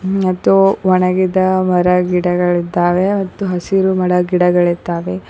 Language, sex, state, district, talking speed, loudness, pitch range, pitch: Kannada, female, Karnataka, Koppal, 100 wpm, -14 LUFS, 180-185 Hz, 180 Hz